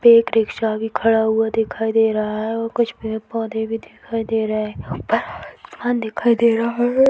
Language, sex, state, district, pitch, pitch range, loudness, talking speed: Hindi, female, Uttar Pradesh, Deoria, 225 Hz, 220-230 Hz, -20 LUFS, 210 wpm